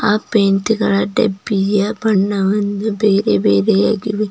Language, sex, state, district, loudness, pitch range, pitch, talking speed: Kannada, female, Karnataka, Bidar, -16 LUFS, 195-215 Hz, 205 Hz, 95 wpm